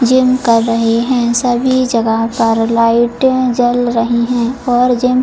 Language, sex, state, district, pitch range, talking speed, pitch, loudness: Hindi, female, Bihar, Purnia, 230-250 Hz, 160 wpm, 240 Hz, -13 LUFS